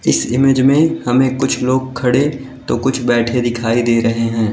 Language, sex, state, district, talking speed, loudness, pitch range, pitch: Hindi, male, Uttar Pradesh, Lalitpur, 185 wpm, -15 LUFS, 120-130 Hz, 125 Hz